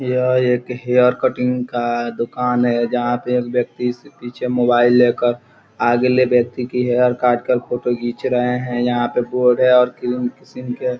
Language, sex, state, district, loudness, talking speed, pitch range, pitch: Hindi, male, Bihar, Gopalganj, -18 LUFS, 160 wpm, 120-125 Hz, 125 Hz